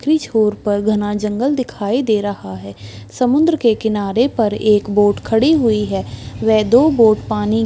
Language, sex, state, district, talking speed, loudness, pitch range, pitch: Hindi, female, Bihar, Bhagalpur, 190 wpm, -16 LUFS, 205-240 Hz, 215 Hz